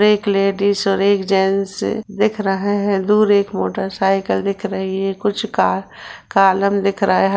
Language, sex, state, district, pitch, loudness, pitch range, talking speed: Hindi, female, Uttar Pradesh, Budaun, 200 Hz, -17 LUFS, 195-205 Hz, 145 wpm